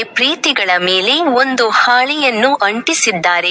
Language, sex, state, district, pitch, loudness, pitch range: Kannada, female, Karnataka, Koppal, 245 Hz, -12 LUFS, 200-275 Hz